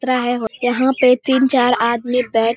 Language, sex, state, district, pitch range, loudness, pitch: Hindi, female, Bihar, Kishanganj, 235-255 Hz, -16 LUFS, 250 Hz